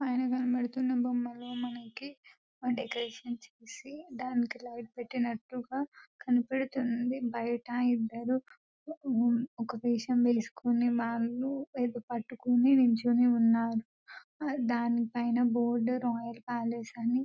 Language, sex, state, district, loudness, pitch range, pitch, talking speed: Telugu, female, Telangana, Nalgonda, -31 LUFS, 235-255 Hz, 245 Hz, 90 wpm